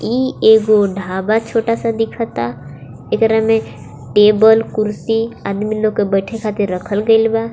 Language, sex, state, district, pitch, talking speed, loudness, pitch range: Bhojpuri, female, Jharkhand, Palamu, 215 Hz, 145 wpm, -15 LUFS, 195-225 Hz